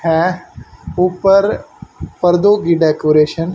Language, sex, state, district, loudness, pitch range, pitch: Hindi, male, Haryana, Charkhi Dadri, -13 LUFS, 165-185 Hz, 175 Hz